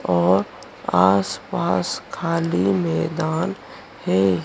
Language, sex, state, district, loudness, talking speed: Hindi, female, Madhya Pradesh, Dhar, -21 LUFS, 65 wpm